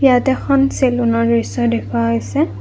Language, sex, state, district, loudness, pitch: Assamese, female, Assam, Kamrup Metropolitan, -16 LUFS, 230 Hz